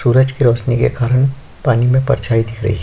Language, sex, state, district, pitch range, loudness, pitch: Hindi, male, Chhattisgarh, Sukma, 115-130 Hz, -15 LUFS, 125 Hz